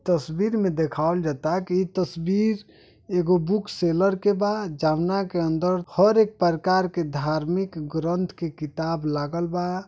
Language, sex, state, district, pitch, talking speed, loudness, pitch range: Bhojpuri, male, Uttar Pradesh, Deoria, 180 Hz, 145 wpm, -24 LUFS, 160-190 Hz